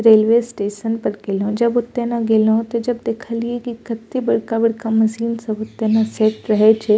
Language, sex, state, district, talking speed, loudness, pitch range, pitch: Maithili, female, Bihar, Purnia, 170 wpm, -18 LUFS, 220-235 Hz, 225 Hz